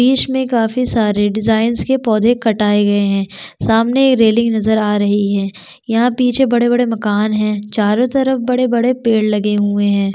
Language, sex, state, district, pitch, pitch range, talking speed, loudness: Hindi, female, Chhattisgarh, Sukma, 220 Hz, 205-245 Hz, 175 wpm, -14 LUFS